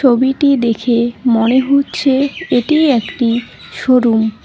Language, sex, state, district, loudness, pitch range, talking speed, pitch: Bengali, female, West Bengal, Cooch Behar, -14 LUFS, 235-275 Hz, 110 wpm, 255 Hz